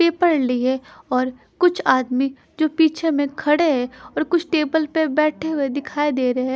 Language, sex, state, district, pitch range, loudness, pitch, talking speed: Hindi, female, Haryana, Charkhi Dadri, 260-315 Hz, -20 LUFS, 300 Hz, 185 wpm